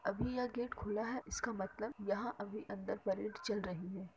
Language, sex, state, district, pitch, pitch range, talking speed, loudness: Hindi, female, Uttar Pradesh, Deoria, 215 Hz, 195-240 Hz, 200 wpm, -41 LUFS